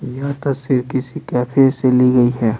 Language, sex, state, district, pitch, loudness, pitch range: Hindi, male, Bihar, Patna, 130 Hz, -16 LUFS, 125-135 Hz